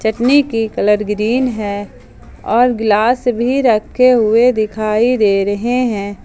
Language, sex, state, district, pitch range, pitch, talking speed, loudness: Hindi, female, Jharkhand, Ranchi, 210-245 Hz, 225 Hz, 135 wpm, -14 LUFS